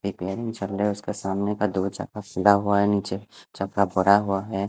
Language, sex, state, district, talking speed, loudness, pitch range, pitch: Hindi, male, Punjab, Fazilka, 140 wpm, -24 LUFS, 95-105 Hz, 100 Hz